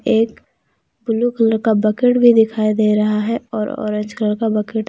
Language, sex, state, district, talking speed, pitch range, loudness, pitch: Hindi, female, Jharkhand, Deoghar, 195 wpm, 215-230 Hz, -17 LUFS, 220 Hz